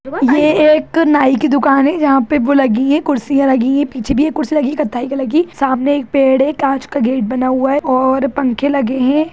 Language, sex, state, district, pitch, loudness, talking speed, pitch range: Hindi, female, Bihar, Jahanabad, 275 Hz, -14 LUFS, 245 wpm, 265-295 Hz